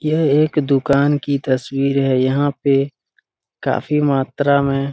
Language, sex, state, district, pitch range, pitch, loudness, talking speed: Hindi, male, Bihar, Araria, 135-145 Hz, 140 Hz, -17 LUFS, 145 wpm